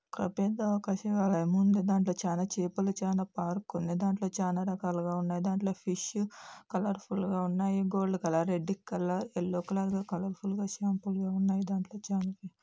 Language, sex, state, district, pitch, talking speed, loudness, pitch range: Telugu, female, Andhra Pradesh, Anantapur, 190 Hz, 160 wpm, -32 LUFS, 180-195 Hz